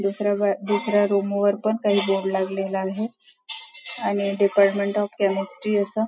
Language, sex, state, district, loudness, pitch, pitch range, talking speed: Marathi, female, Maharashtra, Nagpur, -23 LUFS, 205 Hz, 195-215 Hz, 150 wpm